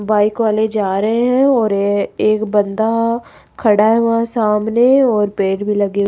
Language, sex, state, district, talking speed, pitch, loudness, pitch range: Hindi, female, Rajasthan, Jaipur, 160 wpm, 215 Hz, -15 LUFS, 205-230 Hz